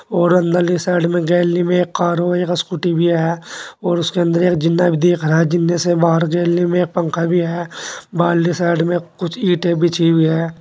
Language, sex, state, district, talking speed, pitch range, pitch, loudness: Hindi, male, Uttar Pradesh, Saharanpur, 215 wpm, 170-175 Hz, 175 Hz, -16 LUFS